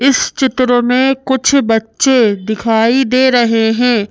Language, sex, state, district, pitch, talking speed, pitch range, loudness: Hindi, female, Madhya Pradesh, Bhopal, 245 Hz, 130 wpm, 225-265 Hz, -12 LUFS